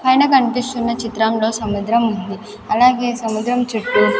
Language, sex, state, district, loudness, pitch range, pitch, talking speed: Telugu, female, Andhra Pradesh, Sri Satya Sai, -17 LUFS, 220-245 Hz, 230 Hz, 130 wpm